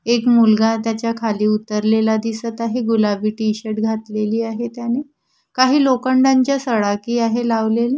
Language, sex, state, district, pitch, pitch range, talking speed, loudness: Marathi, female, Maharashtra, Washim, 230 Hz, 220-240 Hz, 130 wpm, -18 LUFS